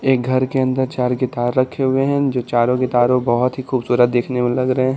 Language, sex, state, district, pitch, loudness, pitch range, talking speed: Hindi, male, Bihar, Patna, 130 Hz, -18 LUFS, 125-130 Hz, 265 wpm